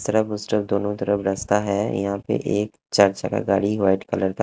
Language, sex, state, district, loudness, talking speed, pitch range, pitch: Hindi, male, Haryana, Rohtak, -22 LUFS, 215 wpm, 100-105 Hz, 100 Hz